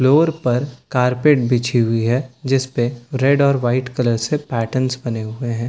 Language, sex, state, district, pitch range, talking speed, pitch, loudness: Hindi, male, Bihar, Katihar, 120-135 Hz, 180 wpm, 125 Hz, -18 LUFS